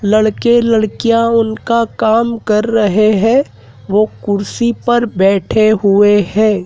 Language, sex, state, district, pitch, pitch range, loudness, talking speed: Hindi, male, Madhya Pradesh, Dhar, 215 Hz, 205-230 Hz, -12 LUFS, 115 wpm